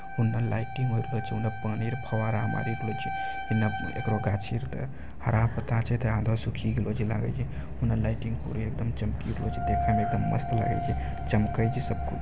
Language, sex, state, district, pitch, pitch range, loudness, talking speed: Maithili, male, Bihar, Bhagalpur, 115 Hz, 110-120 Hz, -29 LUFS, 100 wpm